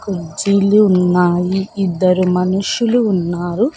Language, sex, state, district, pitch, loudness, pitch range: Telugu, female, Andhra Pradesh, Sri Satya Sai, 190 Hz, -15 LUFS, 180-200 Hz